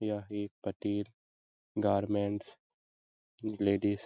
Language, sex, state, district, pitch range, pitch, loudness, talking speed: Hindi, male, Bihar, Lakhisarai, 70-105 Hz, 100 Hz, -34 LUFS, 75 wpm